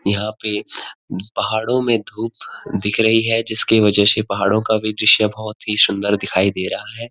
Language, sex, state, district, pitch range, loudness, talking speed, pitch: Hindi, male, Uttarakhand, Uttarkashi, 100-110 Hz, -17 LUFS, 185 wpm, 110 Hz